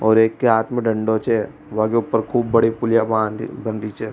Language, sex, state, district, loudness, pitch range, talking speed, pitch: Rajasthani, male, Rajasthan, Churu, -19 LUFS, 110-115 Hz, 205 wpm, 110 Hz